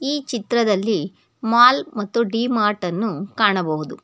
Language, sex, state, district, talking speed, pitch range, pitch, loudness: Kannada, female, Karnataka, Bangalore, 120 wpm, 200-240 Hz, 220 Hz, -19 LUFS